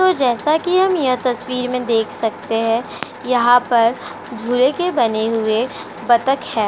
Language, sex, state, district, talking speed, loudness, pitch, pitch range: Hindi, female, Uttar Pradesh, Jyotiba Phule Nagar, 155 wpm, -17 LUFS, 245 Hz, 225-260 Hz